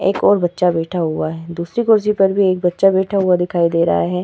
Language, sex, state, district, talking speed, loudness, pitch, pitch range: Hindi, female, Uttar Pradesh, Etah, 255 wpm, -16 LUFS, 175 Hz, 170-195 Hz